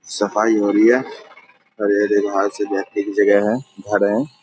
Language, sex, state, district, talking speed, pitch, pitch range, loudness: Hindi, male, Bihar, Saharsa, 175 wpm, 105 Hz, 100-105 Hz, -18 LUFS